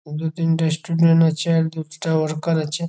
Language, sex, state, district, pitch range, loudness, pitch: Bengali, male, West Bengal, Jhargram, 155-165 Hz, -20 LUFS, 160 Hz